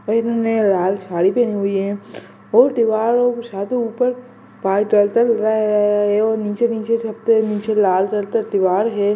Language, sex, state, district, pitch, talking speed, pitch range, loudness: Hindi, male, Bihar, Araria, 215 Hz, 70 wpm, 205-230 Hz, -18 LUFS